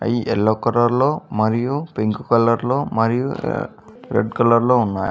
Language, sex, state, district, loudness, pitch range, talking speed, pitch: Telugu, male, Telangana, Mahabubabad, -19 LUFS, 110-125 Hz, 165 wpm, 115 Hz